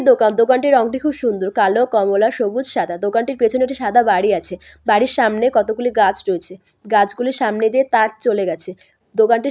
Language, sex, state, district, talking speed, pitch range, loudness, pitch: Bengali, female, West Bengal, Malda, 195 wpm, 210-255 Hz, -17 LUFS, 230 Hz